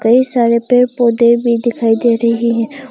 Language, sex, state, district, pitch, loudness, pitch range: Hindi, female, Arunachal Pradesh, Longding, 235 Hz, -13 LUFS, 235-245 Hz